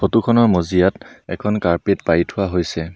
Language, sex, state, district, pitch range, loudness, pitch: Assamese, male, Assam, Sonitpur, 85-105 Hz, -18 LUFS, 95 Hz